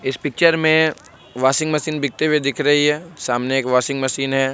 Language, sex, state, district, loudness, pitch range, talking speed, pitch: Hindi, male, Bihar, Begusarai, -18 LUFS, 130-155 Hz, 200 wpm, 145 Hz